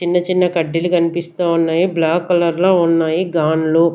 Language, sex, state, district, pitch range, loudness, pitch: Telugu, female, Andhra Pradesh, Sri Satya Sai, 165-175 Hz, -16 LUFS, 170 Hz